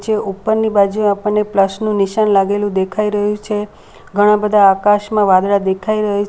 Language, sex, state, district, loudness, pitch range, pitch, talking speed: Gujarati, female, Gujarat, Valsad, -15 LUFS, 200-210 Hz, 205 Hz, 180 wpm